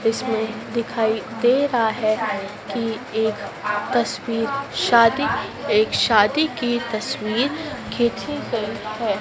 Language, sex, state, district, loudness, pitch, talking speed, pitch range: Hindi, female, Madhya Pradesh, Dhar, -21 LUFS, 225 Hz, 105 wpm, 220-240 Hz